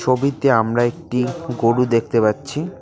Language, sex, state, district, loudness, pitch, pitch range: Bengali, male, West Bengal, Cooch Behar, -19 LUFS, 125 Hz, 115-135 Hz